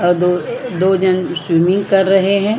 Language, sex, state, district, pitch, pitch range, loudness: Hindi, female, Uttar Pradesh, Jyotiba Phule Nagar, 190 Hz, 175-195 Hz, -15 LUFS